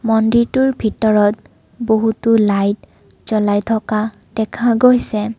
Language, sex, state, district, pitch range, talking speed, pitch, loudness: Assamese, female, Assam, Kamrup Metropolitan, 215-230 Hz, 90 wpm, 220 Hz, -16 LUFS